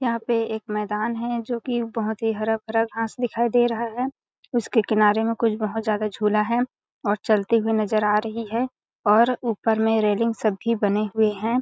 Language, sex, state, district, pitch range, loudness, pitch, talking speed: Hindi, female, Chhattisgarh, Balrampur, 215-235 Hz, -23 LUFS, 225 Hz, 200 wpm